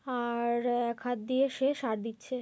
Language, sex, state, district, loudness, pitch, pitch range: Bengali, female, West Bengal, Kolkata, -31 LUFS, 245 Hz, 235-255 Hz